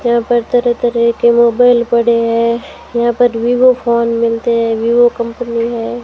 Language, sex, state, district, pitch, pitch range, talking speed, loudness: Hindi, female, Rajasthan, Bikaner, 235 Hz, 235-240 Hz, 160 wpm, -13 LUFS